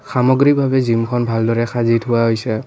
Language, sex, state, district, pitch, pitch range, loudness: Assamese, male, Assam, Kamrup Metropolitan, 120 Hz, 115-130 Hz, -16 LUFS